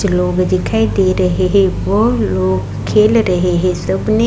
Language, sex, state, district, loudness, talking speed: Hindi, female, Uttarakhand, Tehri Garhwal, -14 LUFS, 180 wpm